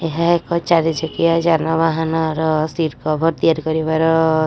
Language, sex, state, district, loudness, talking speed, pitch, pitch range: Odia, female, Odisha, Nuapada, -17 LUFS, 135 wpm, 160 Hz, 160-165 Hz